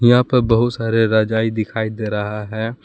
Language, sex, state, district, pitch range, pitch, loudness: Hindi, male, Jharkhand, Palamu, 110-120 Hz, 110 Hz, -18 LUFS